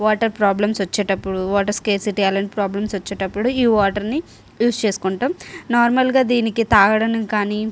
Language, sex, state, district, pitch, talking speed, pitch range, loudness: Telugu, female, Andhra Pradesh, Srikakulam, 210 Hz, 140 wpm, 200-230 Hz, -19 LUFS